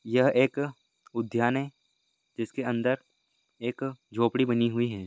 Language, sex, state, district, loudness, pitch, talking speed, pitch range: Hindi, male, Rajasthan, Churu, -28 LUFS, 125 Hz, 130 wpm, 115-135 Hz